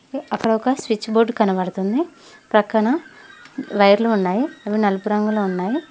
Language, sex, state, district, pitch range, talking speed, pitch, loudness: Telugu, female, Telangana, Mahabubabad, 205-265 Hz, 110 wpm, 220 Hz, -19 LUFS